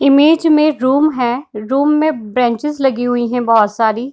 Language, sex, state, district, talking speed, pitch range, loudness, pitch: Hindi, female, Bihar, Darbhanga, 190 wpm, 240-295 Hz, -14 LUFS, 260 Hz